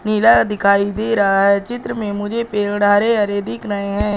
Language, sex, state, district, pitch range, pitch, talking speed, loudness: Hindi, female, Madhya Pradesh, Katni, 200-220 Hz, 205 Hz, 200 wpm, -16 LUFS